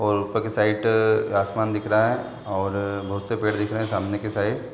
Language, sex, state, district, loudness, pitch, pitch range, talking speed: Hindi, male, Uttar Pradesh, Deoria, -24 LUFS, 105 Hz, 100-110 Hz, 240 wpm